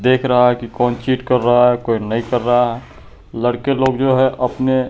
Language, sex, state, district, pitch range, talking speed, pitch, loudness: Hindi, male, Bihar, Katihar, 120-130 Hz, 220 wpm, 125 Hz, -16 LUFS